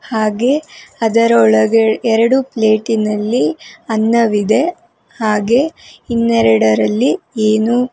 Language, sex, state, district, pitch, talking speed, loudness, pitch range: Kannada, female, Karnataka, Bangalore, 225 Hz, 60 wpm, -14 LUFS, 215-235 Hz